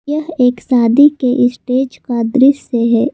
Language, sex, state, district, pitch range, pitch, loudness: Hindi, female, Jharkhand, Palamu, 245-280 Hz, 250 Hz, -13 LUFS